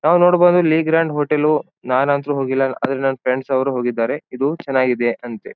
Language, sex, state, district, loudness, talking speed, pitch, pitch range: Kannada, male, Karnataka, Bijapur, -18 LUFS, 160 wpm, 135 Hz, 130-155 Hz